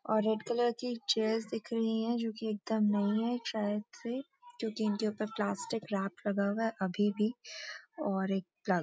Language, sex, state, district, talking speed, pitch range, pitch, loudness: Hindi, female, Uttarakhand, Uttarkashi, 190 wpm, 205-230 Hz, 220 Hz, -34 LUFS